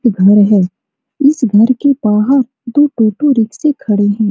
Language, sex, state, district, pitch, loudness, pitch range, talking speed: Hindi, female, Bihar, Supaul, 235 Hz, -12 LUFS, 210-275 Hz, 165 wpm